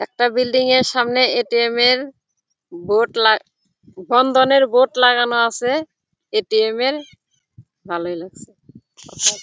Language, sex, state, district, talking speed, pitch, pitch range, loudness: Bengali, female, West Bengal, Jalpaiguri, 110 wpm, 245 Hz, 200-255 Hz, -17 LUFS